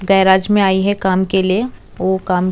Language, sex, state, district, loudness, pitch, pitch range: Hindi, female, Chhattisgarh, Raipur, -15 LUFS, 190 Hz, 185-195 Hz